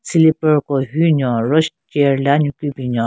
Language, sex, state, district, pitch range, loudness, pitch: Rengma, female, Nagaland, Kohima, 135-155 Hz, -16 LUFS, 145 Hz